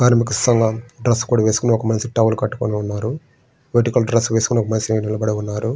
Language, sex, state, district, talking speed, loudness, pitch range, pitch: Telugu, male, Andhra Pradesh, Srikakulam, 155 wpm, -18 LUFS, 110-120 Hz, 115 Hz